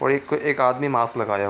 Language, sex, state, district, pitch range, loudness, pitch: Hindi, male, Bihar, Supaul, 115-145 Hz, -22 LUFS, 130 Hz